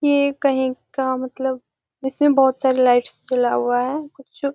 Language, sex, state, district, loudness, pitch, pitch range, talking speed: Hindi, female, Bihar, Gopalganj, -20 LUFS, 265 Hz, 255-280 Hz, 170 wpm